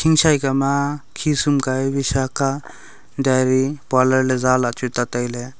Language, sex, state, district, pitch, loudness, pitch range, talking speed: Wancho, male, Arunachal Pradesh, Longding, 135 Hz, -19 LUFS, 130-140 Hz, 120 wpm